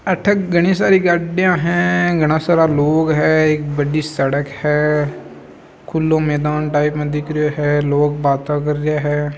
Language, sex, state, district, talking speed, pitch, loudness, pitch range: Marwari, male, Rajasthan, Nagaur, 160 wpm, 150 Hz, -16 LUFS, 145-160 Hz